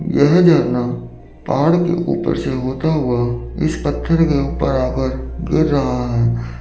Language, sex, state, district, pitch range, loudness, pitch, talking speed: Hindi, male, Chandigarh, Chandigarh, 120-160 Hz, -17 LUFS, 130 Hz, 145 wpm